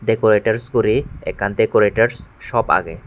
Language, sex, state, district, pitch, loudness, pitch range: Chakma, male, Tripura, West Tripura, 110 Hz, -17 LUFS, 105-115 Hz